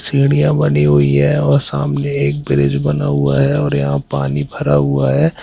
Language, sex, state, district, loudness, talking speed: Hindi, male, Jharkhand, Jamtara, -15 LUFS, 190 wpm